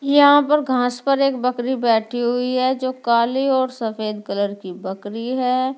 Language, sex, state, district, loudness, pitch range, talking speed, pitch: Hindi, female, Delhi, New Delhi, -19 LUFS, 225-260 Hz, 175 wpm, 250 Hz